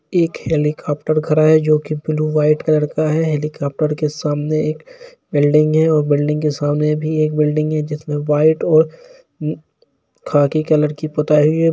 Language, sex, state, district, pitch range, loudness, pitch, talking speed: Hindi, male, Jharkhand, Jamtara, 150-155 Hz, -17 LUFS, 155 Hz, 160 wpm